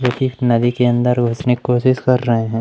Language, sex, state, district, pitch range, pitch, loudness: Hindi, male, Madhya Pradesh, Umaria, 120-125 Hz, 125 Hz, -16 LUFS